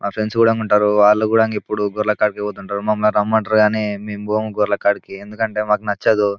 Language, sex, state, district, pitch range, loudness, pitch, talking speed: Telugu, male, Telangana, Nalgonda, 105-110 Hz, -18 LUFS, 105 Hz, 190 wpm